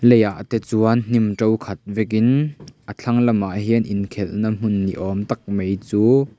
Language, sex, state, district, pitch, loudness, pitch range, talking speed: Mizo, male, Mizoram, Aizawl, 110 Hz, -20 LUFS, 100-120 Hz, 195 wpm